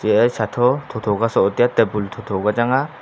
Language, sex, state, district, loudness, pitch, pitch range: Wancho, male, Arunachal Pradesh, Longding, -19 LUFS, 115 Hz, 105-125 Hz